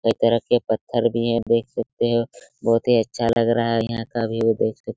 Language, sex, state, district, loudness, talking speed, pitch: Hindi, male, Bihar, Araria, -21 LUFS, 255 wpm, 115 Hz